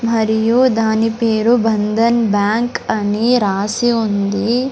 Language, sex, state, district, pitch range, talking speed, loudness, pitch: Telugu, male, Andhra Pradesh, Sri Satya Sai, 210-235 Hz, 100 wpm, -15 LUFS, 225 Hz